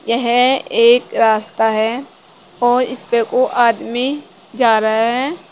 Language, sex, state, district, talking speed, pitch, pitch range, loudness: Hindi, female, Uttar Pradesh, Saharanpur, 130 wpm, 240 Hz, 225-260 Hz, -15 LUFS